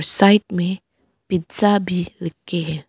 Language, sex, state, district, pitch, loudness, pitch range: Hindi, female, Arunachal Pradesh, Papum Pare, 180 Hz, -19 LUFS, 170-200 Hz